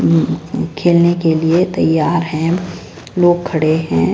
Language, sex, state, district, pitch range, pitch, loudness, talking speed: Hindi, female, Punjab, Fazilka, 155-175 Hz, 160 Hz, -15 LUFS, 115 wpm